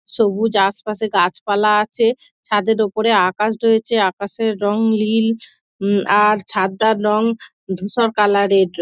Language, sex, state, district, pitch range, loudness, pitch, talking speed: Bengali, female, West Bengal, Dakshin Dinajpur, 200-225 Hz, -17 LUFS, 210 Hz, 115 wpm